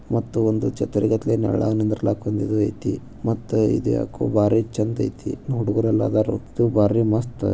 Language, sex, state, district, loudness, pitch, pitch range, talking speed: Kannada, male, Karnataka, Bijapur, -22 LUFS, 110 Hz, 105-115 Hz, 125 wpm